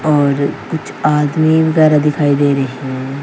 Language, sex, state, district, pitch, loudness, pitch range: Hindi, female, Haryana, Jhajjar, 145 Hz, -14 LUFS, 140-155 Hz